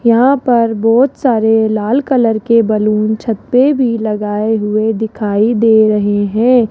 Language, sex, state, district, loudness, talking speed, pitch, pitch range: Hindi, female, Rajasthan, Jaipur, -12 LUFS, 150 wpm, 225 Hz, 215-240 Hz